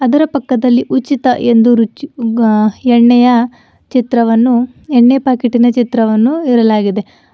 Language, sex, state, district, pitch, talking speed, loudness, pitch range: Kannada, female, Karnataka, Bidar, 245 Hz, 100 wpm, -11 LUFS, 230-255 Hz